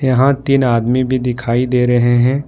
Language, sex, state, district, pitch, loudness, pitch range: Hindi, male, Jharkhand, Ranchi, 125 Hz, -14 LUFS, 120-130 Hz